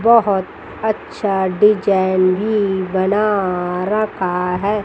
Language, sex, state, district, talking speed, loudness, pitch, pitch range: Hindi, female, Chandigarh, Chandigarh, 85 wpm, -17 LUFS, 195 Hz, 185-210 Hz